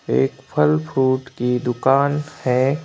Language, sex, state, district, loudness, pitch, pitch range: Hindi, male, Madhya Pradesh, Bhopal, -19 LUFS, 135 Hz, 130-145 Hz